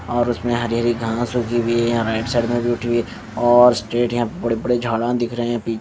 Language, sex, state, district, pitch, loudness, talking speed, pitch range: Hindi, male, Bihar, West Champaran, 120 Hz, -19 LUFS, 250 wpm, 115-120 Hz